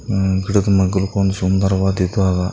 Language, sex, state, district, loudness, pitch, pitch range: Kannada, male, Karnataka, Bijapur, -17 LUFS, 95 Hz, 95-100 Hz